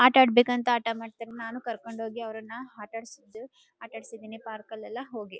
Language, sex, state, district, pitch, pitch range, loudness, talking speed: Kannada, female, Karnataka, Chamarajanagar, 230 Hz, 225-245 Hz, -28 LUFS, 190 wpm